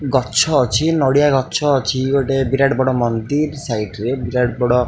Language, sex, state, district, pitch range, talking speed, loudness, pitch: Odia, male, Odisha, Khordha, 125-140 Hz, 170 wpm, -17 LUFS, 135 Hz